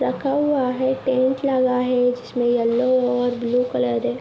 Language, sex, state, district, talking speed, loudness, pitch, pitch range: Hindi, female, Jharkhand, Jamtara, 170 wpm, -20 LUFS, 250 Hz, 240-260 Hz